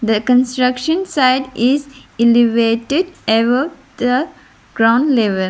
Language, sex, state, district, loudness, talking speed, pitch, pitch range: English, female, Arunachal Pradesh, Lower Dibang Valley, -15 LUFS, 100 wpm, 250 Hz, 230-280 Hz